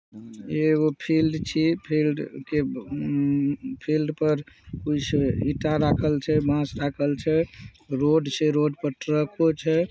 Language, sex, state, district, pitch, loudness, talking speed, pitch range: Hindi, male, Bihar, Saharsa, 150 Hz, -24 LUFS, 135 wpm, 145-155 Hz